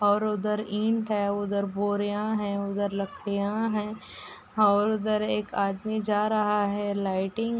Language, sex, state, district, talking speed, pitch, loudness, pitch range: Hindi, female, Uttar Pradesh, Ghazipur, 150 wpm, 210 Hz, -27 LUFS, 200-215 Hz